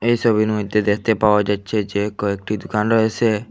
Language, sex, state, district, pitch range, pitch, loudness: Bengali, male, Assam, Hailakandi, 105-110 Hz, 105 Hz, -19 LUFS